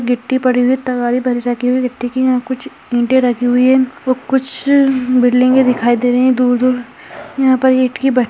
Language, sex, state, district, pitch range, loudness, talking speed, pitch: Hindi, female, Rajasthan, Churu, 245-260 Hz, -14 LUFS, 210 wpm, 255 Hz